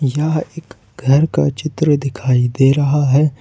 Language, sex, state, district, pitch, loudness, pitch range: Hindi, male, Jharkhand, Ranchi, 140 Hz, -15 LUFS, 130-155 Hz